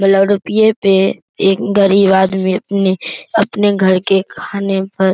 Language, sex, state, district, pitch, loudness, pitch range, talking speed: Hindi, male, Bihar, Araria, 195 Hz, -14 LUFS, 190-200 Hz, 115 wpm